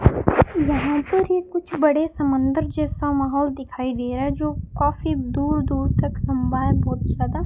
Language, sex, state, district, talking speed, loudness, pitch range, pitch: Hindi, male, Rajasthan, Bikaner, 170 wpm, -22 LUFS, 270-315 Hz, 290 Hz